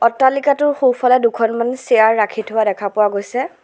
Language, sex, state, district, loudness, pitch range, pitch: Assamese, female, Assam, Sonitpur, -16 LUFS, 220-260 Hz, 235 Hz